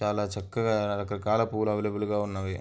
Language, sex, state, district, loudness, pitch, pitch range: Telugu, male, Andhra Pradesh, Anantapur, -29 LUFS, 105 Hz, 100-105 Hz